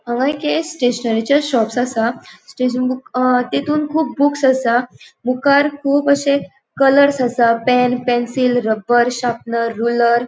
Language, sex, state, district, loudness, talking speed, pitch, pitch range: Konkani, female, Goa, North and South Goa, -16 LUFS, 115 wpm, 250 Hz, 240-280 Hz